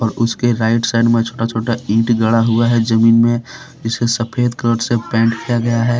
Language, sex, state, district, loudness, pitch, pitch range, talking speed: Hindi, male, Jharkhand, Deoghar, -15 LUFS, 115 Hz, 115-120 Hz, 190 wpm